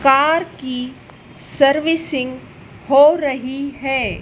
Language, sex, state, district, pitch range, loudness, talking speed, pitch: Hindi, female, Madhya Pradesh, Dhar, 260-295 Hz, -17 LUFS, 85 wpm, 275 Hz